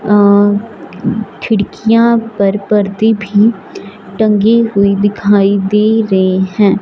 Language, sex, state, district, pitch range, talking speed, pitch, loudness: Hindi, male, Punjab, Fazilka, 200-220 Hz, 95 wpm, 205 Hz, -11 LUFS